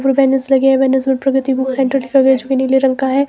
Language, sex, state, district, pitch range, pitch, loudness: Hindi, female, Himachal Pradesh, Shimla, 265-270 Hz, 265 Hz, -14 LUFS